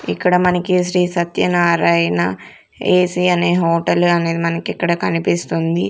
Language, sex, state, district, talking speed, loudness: Telugu, female, Andhra Pradesh, Sri Satya Sai, 110 wpm, -16 LUFS